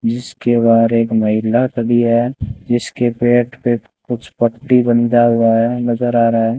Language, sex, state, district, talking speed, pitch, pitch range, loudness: Hindi, male, Rajasthan, Bikaner, 165 wpm, 120 Hz, 115-120 Hz, -15 LUFS